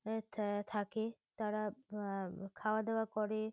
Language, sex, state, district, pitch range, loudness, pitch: Bengali, female, West Bengal, Kolkata, 205-220 Hz, -40 LUFS, 215 Hz